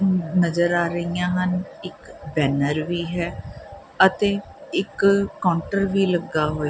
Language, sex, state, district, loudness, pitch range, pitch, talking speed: Punjabi, female, Punjab, Kapurthala, -22 LUFS, 170-190 Hz, 175 Hz, 125 wpm